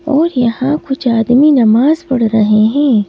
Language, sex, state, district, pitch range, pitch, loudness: Hindi, female, Madhya Pradesh, Bhopal, 230-290 Hz, 250 Hz, -11 LUFS